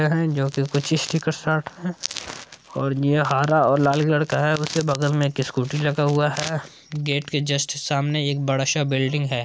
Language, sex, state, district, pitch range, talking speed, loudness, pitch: Hindi, male, Bihar, Saran, 140-155 Hz, 190 wpm, -22 LUFS, 145 Hz